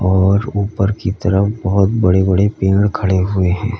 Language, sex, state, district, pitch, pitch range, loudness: Hindi, male, Uttar Pradesh, Lalitpur, 100 Hz, 95-105 Hz, -15 LUFS